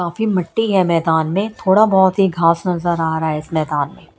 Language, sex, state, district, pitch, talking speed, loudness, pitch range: Hindi, female, Bihar, Kaimur, 175 Hz, 230 wpm, -17 LUFS, 160-195 Hz